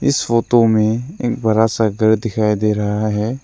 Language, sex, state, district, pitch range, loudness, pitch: Hindi, male, Arunachal Pradesh, Lower Dibang Valley, 110-115 Hz, -16 LUFS, 110 Hz